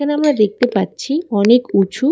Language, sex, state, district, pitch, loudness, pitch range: Bengali, female, West Bengal, Dakshin Dinajpur, 245 Hz, -16 LUFS, 205-290 Hz